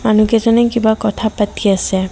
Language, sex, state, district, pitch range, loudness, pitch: Assamese, female, Assam, Kamrup Metropolitan, 205-225 Hz, -14 LUFS, 215 Hz